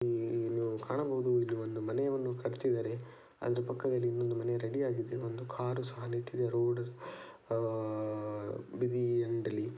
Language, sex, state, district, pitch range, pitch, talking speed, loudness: Kannada, male, Karnataka, Dakshina Kannada, 115-125 Hz, 120 Hz, 115 wpm, -35 LUFS